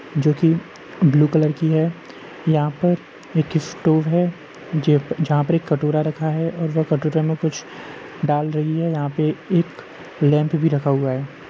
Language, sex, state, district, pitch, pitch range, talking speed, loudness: Hindi, male, Uttar Pradesh, Jalaun, 155 Hz, 150-165 Hz, 175 wpm, -20 LUFS